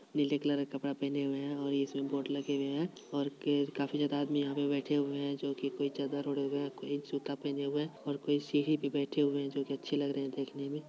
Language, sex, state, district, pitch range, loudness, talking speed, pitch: Hindi, male, Bihar, Supaul, 140-145 Hz, -35 LUFS, 230 wpm, 140 Hz